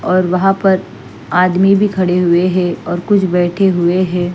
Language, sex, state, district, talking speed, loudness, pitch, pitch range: Hindi, female, Punjab, Fazilka, 180 wpm, -13 LUFS, 180 Hz, 175-190 Hz